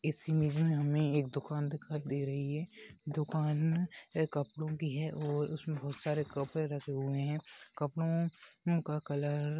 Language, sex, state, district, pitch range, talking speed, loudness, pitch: Hindi, male, Maharashtra, Aurangabad, 145-155 Hz, 170 wpm, -35 LUFS, 150 Hz